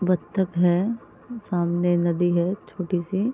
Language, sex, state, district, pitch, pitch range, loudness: Hindi, female, Uttar Pradesh, Varanasi, 180 Hz, 175-200 Hz, -23 LUFS